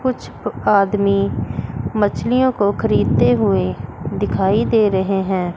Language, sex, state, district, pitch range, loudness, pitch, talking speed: Hindi, female, Chandigarh, Chandigarh, 130-210 Hz, -18 LUFS, 195 Hz, 110 wpm